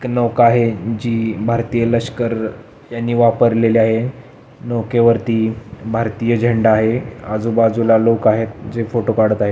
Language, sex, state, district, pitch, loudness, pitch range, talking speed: Marathi, male, Maharashtra, Pune, 115 Hz, -16 LUFS, 110-120 Hz, 140 wpm